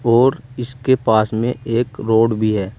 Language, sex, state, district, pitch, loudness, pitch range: Hindi, male, Uttar Pradesh, Saharanpur, 115 Hz, -17 LUFS, 110-125 Hz